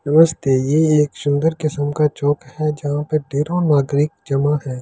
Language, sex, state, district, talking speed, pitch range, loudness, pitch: Hindi, male, Delhi, New Delhi, 175 wpm, 145-155 Hz, -18 LUFS, 145 Hz